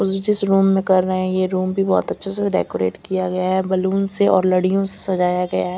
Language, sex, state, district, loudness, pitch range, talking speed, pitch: Hindi, female, Punjab, Fazilka, -19 LUFS, 185-195 Hz, 250 wpm, 190 Hz